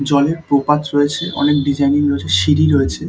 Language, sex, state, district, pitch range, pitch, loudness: Bengali, male, West Bengal, Dakshin Dinajpur, 140-150 Hz, 145 Hz, -15 LUFS